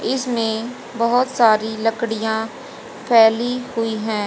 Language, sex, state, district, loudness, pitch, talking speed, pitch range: Hindi, female, Haryana, Jhajjar, -19 LUFS, 230 Hz, 100 wpm, 220-240 Hz